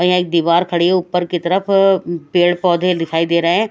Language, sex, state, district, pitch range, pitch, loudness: Hindi, female, Odisha, Malkangiri, 170-185 Hz, 175 Hz, -15 LUFS